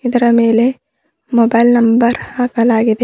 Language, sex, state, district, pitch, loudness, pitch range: Kannada, female, Karnataka, Bidar, 235 Hz, -13 LUFS, 230-245 Hz